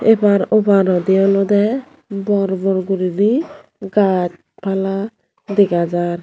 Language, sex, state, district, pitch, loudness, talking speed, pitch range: Chakma, female, Tripura, Unakoti, 195 Hz, -16 LUFS, 95 wpm, 190-205 Hz